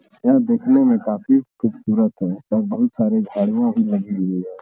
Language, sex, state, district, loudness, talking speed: Hindi, male, Uttar Pradesh, Etah, -19 LUFS, 180 wpm